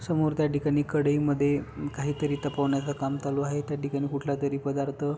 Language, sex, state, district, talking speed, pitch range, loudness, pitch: Marathi, male, Maharashtra, Pune, 185 wpm, 140-145 Hz, -28 LUFS, 145 Hz